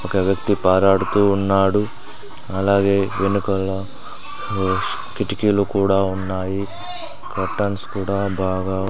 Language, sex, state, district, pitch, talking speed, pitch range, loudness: Telugu, male, Andhra Pradesh, Sri Satya Sai, 100 Hz, 85 wpm, 95-100 Hz, -20 LUFS